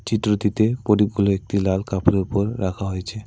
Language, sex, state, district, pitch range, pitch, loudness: Bengali, male, West Bengal, Cooch Behar, 95-105 Hz, 100 Hz, -21 LUFS